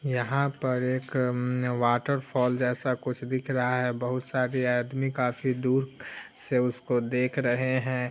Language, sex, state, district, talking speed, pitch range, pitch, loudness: Hindi, male, Bihar, Vaishali, 155 wpm, 125-130 Hz, 125 Hz, -28 LUFS